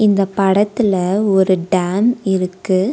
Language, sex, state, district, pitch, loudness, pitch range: Tamil, female, Tamil Nadu, Nilgiris, 195 Hz, -16 LUFS, 185-205 Hz